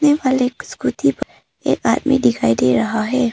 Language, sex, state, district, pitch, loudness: Hindi, female, Arunachal Pradesh, Papum Pare, 220 Hz, -18 LUFS